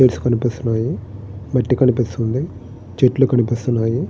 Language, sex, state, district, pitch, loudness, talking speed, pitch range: Telugu, male, Andhra Pradesh, Srikakulam, 120 Hz, -18 LUFS, 130 wpm, 110-125 Hz